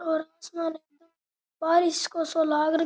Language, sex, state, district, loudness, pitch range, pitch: Rajasthani, male, Rajasthan, Nagaur, -26 LUFS, 320-330 Hz, 325 Hz